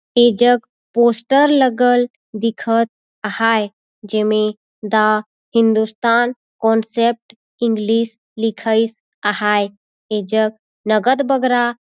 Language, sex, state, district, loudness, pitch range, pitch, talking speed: Surgujia, female, Chhattisgarh, Sarguja, -17 LUFS, 215-240 Hz, 225 Hz, 85 wpm